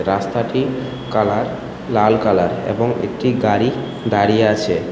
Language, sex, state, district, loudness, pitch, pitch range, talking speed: Bengali, male, Tripura, West Tripura, -18 LUFS, 110 Hz, 100-120 Hz, 110 wpm